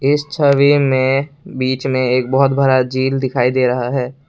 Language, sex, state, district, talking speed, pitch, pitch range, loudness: Hindi, male, Assam, Kamrup Metropolitan, 180 wpm, 130 Hz, 130-140 Hz, -15 LUFS